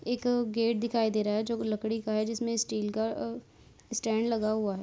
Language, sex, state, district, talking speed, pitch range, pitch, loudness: Hindi, female, Uttar Pradesh, Hamirpur, 235 wpm, 215-230 Hz, 220 Hz, -30 LUFS